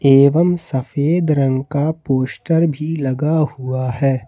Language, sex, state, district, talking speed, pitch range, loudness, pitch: Hindi, male, Jharkhand, Ranchi, 125 wpm, 130-160 Hz, -17 LUFS, 140 Hz